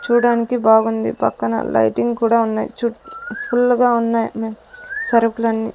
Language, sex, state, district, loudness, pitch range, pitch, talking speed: Telugu, female, Andhra Pradesh, Sri Satya Sai, -18 LUFS, 225-240 Hz, 230 Hz, 115 wpm